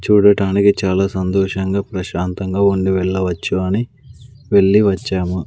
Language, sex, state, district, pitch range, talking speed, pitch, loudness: Telugu, male, Andhra Pradesh, Sri Satya Sai, 95-100 Hz, 100 wpm, 95 Hz, -16 LUFS